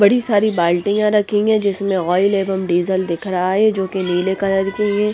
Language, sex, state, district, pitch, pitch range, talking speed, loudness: Hindi, female, Punjab, Pathankot, 195 Hz, 185-210 Hz, 200 wpm, -17 LUFS